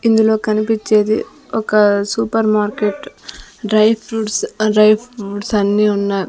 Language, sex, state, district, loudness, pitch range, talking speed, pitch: Telugu, female, Andhra Pradesh, Sri Satya Sai, -15 LUFS, 210-220 Hz, 105 wpm, 215 Hz